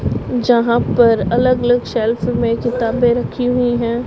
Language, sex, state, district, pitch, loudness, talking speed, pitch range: Hindi, female, Punjab, Pathankot, 240 Hz, -16 LUFS, 145 wpm, 230-245 Hz